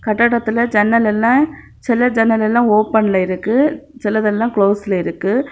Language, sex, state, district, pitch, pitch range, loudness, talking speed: Tamil, female, Tamil Nadu, Kanyakumari, 220 Hz, 210-240 Hz, -15 LUFS, 120 wpm